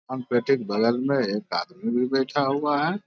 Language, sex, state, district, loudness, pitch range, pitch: Hindi, male, Bihar, Begusarai, -24 LUFS, 120-140 Hz, 130 Hz